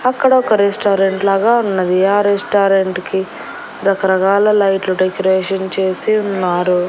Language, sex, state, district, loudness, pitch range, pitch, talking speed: Telugu, female, Andhra Pradesh, Annamaya, -14 LUFS, 190-205 Hz, 195 Hz, 105 wpm